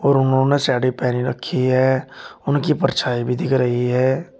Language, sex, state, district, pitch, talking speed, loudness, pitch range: Hindi, male, Uttar Pradesh, Shamli, 130 Hz, 165 wpm, -19 LUFS, 125-145 Hz